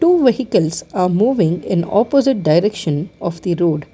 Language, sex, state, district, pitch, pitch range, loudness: English, female, Karnataka, Bangalore, 180 Hz, 170-245 Hz, -16 LUFS